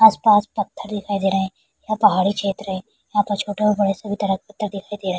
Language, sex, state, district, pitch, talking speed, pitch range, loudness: Hindi, female, Bihar, Kishanganj, 205 Hz, 175 wpm, 195-210 Hz, -21 LUFS